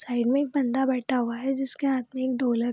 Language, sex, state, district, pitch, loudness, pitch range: Hindi, female, Bihar, Madhepura, 260 Hz, -26 LUFS, 245-270 Hz